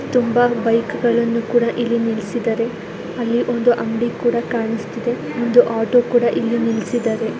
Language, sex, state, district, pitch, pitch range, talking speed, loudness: Kannada, female, Karnataka, Raichur, 235 Hz, 230-240 Hz, 130 wpm, -18 LUFS